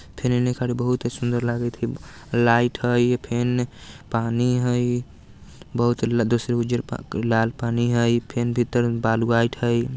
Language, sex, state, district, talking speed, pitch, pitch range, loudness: Bajjika, male, Bihar, Vaishali, 155 wpm, 120 Hz, 115-120 Hz, -23 LUFS